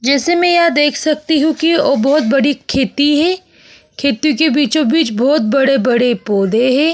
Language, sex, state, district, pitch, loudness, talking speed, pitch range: Hindi, female, Maharashtra, Aurangabad, 285 Hz, -13 LUFS, 180 wpm, 265-310 Hz